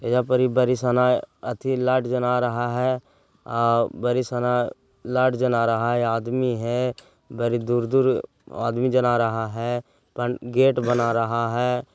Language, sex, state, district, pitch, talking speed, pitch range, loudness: Hindi, male, Bihar, Jahanabad, 125 Hz, 140 wpm, 120-125 Hz, -23 LUFS